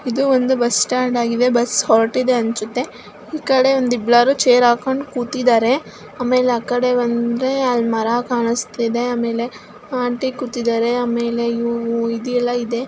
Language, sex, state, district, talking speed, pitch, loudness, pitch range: Kannada, male, Karnataka, Mysore, 115 wpm, 245 Hz, -17 LUFS, 235-250 Hz